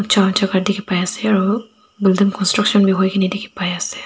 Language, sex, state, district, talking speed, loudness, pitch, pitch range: Nagamese, female, Nagaland, Dimapur, 135 wpm, -17 LUFS, 200 Hz, 190-210 Hz